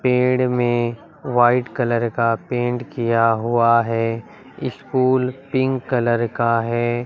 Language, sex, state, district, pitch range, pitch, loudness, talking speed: Hindi, male, Bihar, Katihar, 115-125 Hz, 120 Hz, -19 LUFS, 120 wpm